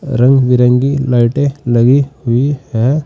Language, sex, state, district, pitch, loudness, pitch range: Hindi, male, Uttar Pradesh, Saharanpur, 130 Hz, -12 LUFS, 125-140 Hz